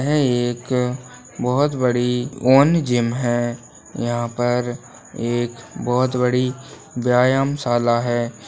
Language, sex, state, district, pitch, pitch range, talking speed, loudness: Hindi, male, Bihar, Bhagalpur, 125 Hz, 120-130 Hz, 105 wpm, -20 LUFS